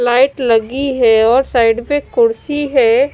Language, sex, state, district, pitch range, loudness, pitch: Hindi, female, Punjab, Kapurthala, 240-290 Hz, -13 LUFS, 270 Hz